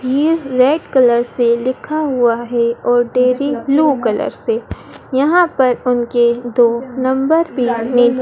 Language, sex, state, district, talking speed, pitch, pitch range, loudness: Hindi, female, Madhya Pradesh, Dhar, 140 wpm, 255 Hz, 240-280 Hz, -15 LUFS